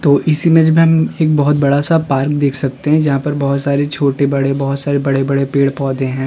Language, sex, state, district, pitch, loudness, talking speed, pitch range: Hindi, male, Uttar Pradesh, Lalitpur, 140 Hz, -14 LUFS, 220 wpm, 140-150 Hz